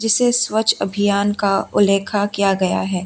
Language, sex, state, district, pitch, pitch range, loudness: Hindi, female, Tripura, West Tripura, 200 Hz, 195-220 Hz, -17 LUFS